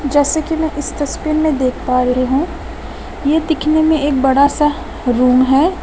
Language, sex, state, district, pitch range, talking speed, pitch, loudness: Hindi, female, West Bengal, Alipurduar, 265-315 Hz, 185 wpm, 290 Hz, -15 LUFS